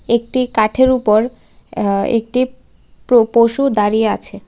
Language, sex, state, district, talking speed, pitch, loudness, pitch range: Bengali, female, Tripura, West Tripura, 120 wpm, 230 Hz, -15 LUFS, 215-255 Hz